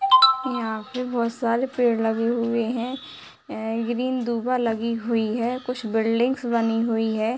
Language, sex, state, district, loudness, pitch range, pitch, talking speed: Hindi, female, Bihar, Sitamarhi, -23 LUFS, 225-250 Hz, 235 Hz, 160 wpm